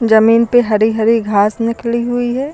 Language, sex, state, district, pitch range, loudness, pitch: Hindi, female, Uttar Pradesh, Lucknow, 220-240 Hz, -13 LUFS, 230 Hz